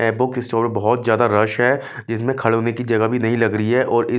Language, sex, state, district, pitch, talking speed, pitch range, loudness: Hindi, male, Bihar, West Champaran, 120 Hz, 285 wpm, 115-125 Hz, -18 LUFS